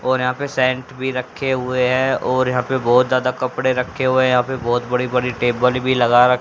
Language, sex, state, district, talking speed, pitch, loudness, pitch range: Hindi, female, Haryana, Jhajjar, 225 wpm, 125 Hz, -18 LUFS, 125-130 Hz